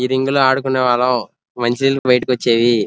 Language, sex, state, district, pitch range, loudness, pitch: Telugu, male, Andhra Pradesh, Krishna, 120-130 Hz, -16 LUFS, 125 Hz